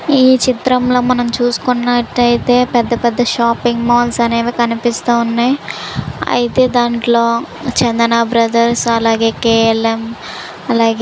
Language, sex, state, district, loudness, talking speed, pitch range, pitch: Telugu, female, Andhra Pradesh, Visakhapatnam, -13 LUFS, 100 wpm, 235-245 Hz, 235 Hz